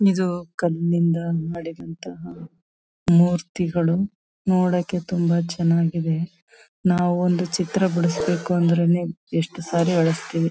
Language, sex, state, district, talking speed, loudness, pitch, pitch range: Kannada, female, Karnataka, Chamarajanagar, 90 wpm, -22 LUFS, 170 Hz, 165-180 Hz